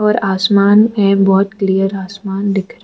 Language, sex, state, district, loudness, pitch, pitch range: Hindi, female, Arunachal Pradesh, Lower Dibang Valley, -13 LUFS, 195 Hz, 195-205 Hz